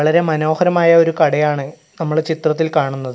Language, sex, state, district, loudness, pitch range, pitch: Malayalam, male, Kerala, Kasaragod, -16 LUFS, 150-165 Hz, 155 Hz